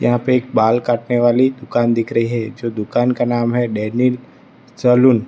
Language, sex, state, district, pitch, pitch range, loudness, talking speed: Hindi, male, Gujarat, Valsad, 120 Hz, 115-125 Hz, -17 LUFS, 205 wpm